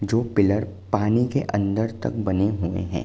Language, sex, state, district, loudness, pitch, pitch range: Hindi, male, Uttar Pradesh, Jalaun, -23 LUFS, 105 Hz, 100-110 Hz